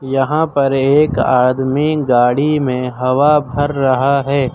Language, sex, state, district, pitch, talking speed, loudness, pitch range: Hindi, male, Uttar Pradesh, Lucknow, 135 Hz, 130 wpm, -14 LUFS, 130-145 Hz